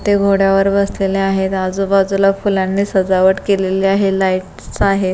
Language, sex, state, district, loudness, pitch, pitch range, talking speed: Marathi, female, Maharashtra, Pune, -15 LUFS, 195 Hz, 190-200 Hz, 130 wpm